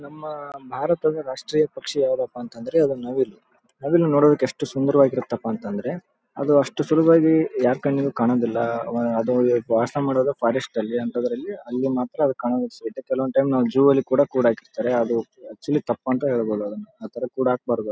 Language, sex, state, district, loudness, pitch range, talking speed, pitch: Kannada, male, Karnataka, Raichur, -22 LUFS, 120-145 Hz, 55 wpm, 130 Hz